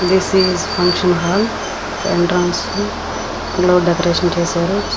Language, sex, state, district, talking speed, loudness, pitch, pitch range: Telugu, female, Andhra Pradesh, Srikakulam, 70 wpm, -16 LUFS, 180 Hz, 175-185 Hz